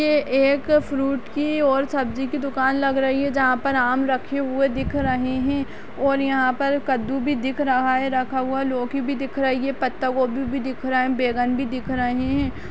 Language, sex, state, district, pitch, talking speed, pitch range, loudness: Kumaoni, female, Uttarakhand, Uttarkashi, 265 Hz, 210 wpm, 260-275 Hz, -22 LUFS